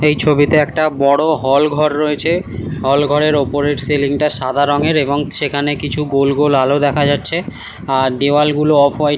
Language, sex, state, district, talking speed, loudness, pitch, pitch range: Bengali, male, West Bengal, Kolkata, 175 wpm, -14 LUFS, 145 Hz, 140-150 Hz